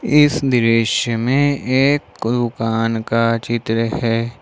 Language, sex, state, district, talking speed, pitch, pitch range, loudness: Hindi, male, Jharkhand, Ranchi, 110 wpm, 115 Hz, 115-130 Hz, -17 LUFS